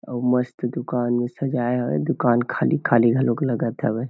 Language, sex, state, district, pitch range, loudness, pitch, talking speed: Chhattisgarhi, male, Chhattisgarh, Kabirdham, 120-125 Hz, -22 LUFS, 120 Hz, 160 wpm